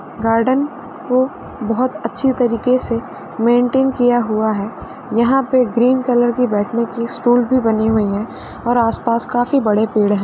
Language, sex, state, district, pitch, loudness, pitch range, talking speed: Hindi, female, Uttar Pradesh, Varanasi, 240 Hz, -16 LUFS, 225-255 Hz, 165 wpm